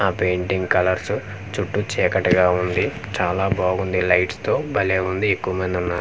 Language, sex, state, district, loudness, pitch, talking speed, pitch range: Telugu, male, Andhra Pradesh, Manyam, -21 LUFS, 95 Hz, 140 wpm, 90-95 Hz